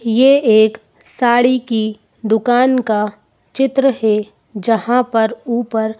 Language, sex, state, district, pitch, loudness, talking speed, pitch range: Hindi, female, Madhya Pradesh, Bhopal, 230 Hz, -15 LUFS, 110 wpm, 220-245 Hz